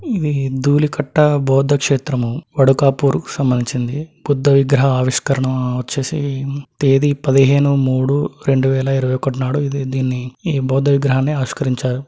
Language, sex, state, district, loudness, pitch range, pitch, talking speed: Telugu, male, Telangana, Karimnagar, -16 LUFS, 130-145 Hz, 135 Hz, 120 wpm